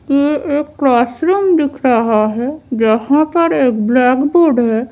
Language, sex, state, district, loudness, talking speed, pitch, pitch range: Hindi, female, Delhi, New Delhi, -13 LUFS, 145 wpm, 270 Hz, 240-300 Hz